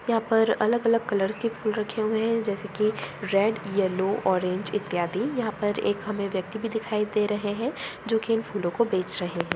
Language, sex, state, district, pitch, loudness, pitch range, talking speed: Hindi, female, Bihar, Jamui, 210 Hz, -26 LUFS, 195-225 Hz, 215 wpm